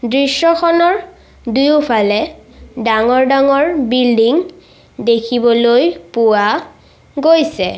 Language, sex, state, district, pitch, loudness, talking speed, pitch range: Assamese, female, Assam, Sonitpur, 255 Hz, -13 LUFS, 60 wpm, 230-315 Hz